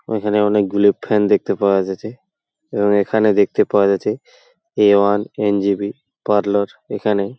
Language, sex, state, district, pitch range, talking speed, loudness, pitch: Bengali, male, West Bengal, Paschim Medinipur, 100-110 Hz, 130 wpm, -17 LUFS, 105 Hz